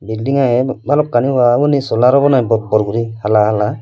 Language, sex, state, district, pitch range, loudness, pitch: Chakma, male, Tripura, Dhalai, 110-135 Hz, -14 LUFS, 120 Hz